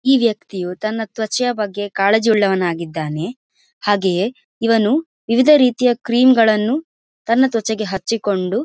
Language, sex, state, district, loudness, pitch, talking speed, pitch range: Kannada, female, Karnataka, Dakshina Kannada, -17 LUFS, 220 Hz, 120 wpm, 200-245 Hz